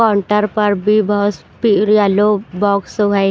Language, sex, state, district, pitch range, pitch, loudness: Hindi, female, Punjab, Pathankot, 200-210 Hz, 205 Hz, -15 LUFS